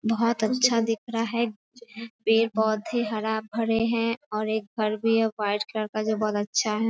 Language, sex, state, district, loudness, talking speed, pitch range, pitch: Hindi, female, Bihar, Sitamarhi, -26 LUFS, 210 wpm, 215-230 Hz, 225 Hz